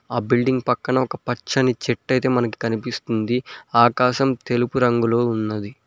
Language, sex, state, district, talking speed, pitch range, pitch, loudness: Telugu, male, Telangana, Mahabubabad, 135 wpm, 115-130 Hz, 120 Hz, -21 LUFS